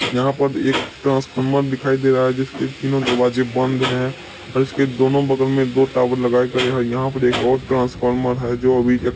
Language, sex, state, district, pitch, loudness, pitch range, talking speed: Maithili, male, Bihar, Supaul, 130 Hz, -18 LUFS, 125-135 Hz, 210 wpm